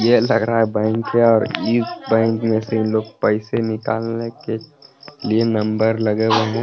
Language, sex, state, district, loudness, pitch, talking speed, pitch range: Hindi, male, Jharkhand, Palamu, -19 LUFS, 110 Hz, 180 wpm, 110-115 Hz